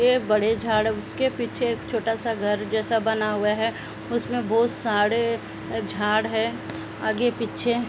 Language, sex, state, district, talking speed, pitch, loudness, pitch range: Hindi, female, Uttar Pradesh, Ghazipur, 165 wpm, 225 Hz, -24 LUFS, 215-235 Hz